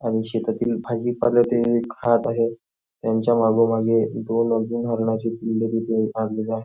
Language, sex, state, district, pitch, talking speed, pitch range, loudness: Marathi, male, Maharashtra, Nagpur, 115 Hz, 135 wpm, 115-120 Hz, -22 LUFS